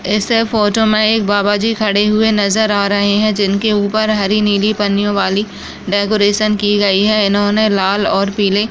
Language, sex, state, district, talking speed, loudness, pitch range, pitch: Hindi, female, Maharashtra, Chandrapur, 180 wpm, -13 LUFS, 200-215 Hz, 205 Hz